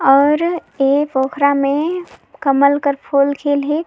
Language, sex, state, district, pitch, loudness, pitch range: Sadri, female, Chhattisgarh, Jashpur, 285 Hz, -16 LUFS, 275-300 Hz